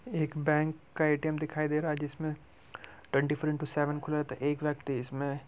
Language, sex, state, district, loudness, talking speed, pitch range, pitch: Hindi, male, Bihar, Muzaffarpur, -32 LUFS, 220 wpm, 145-155 Hz, 150 Hz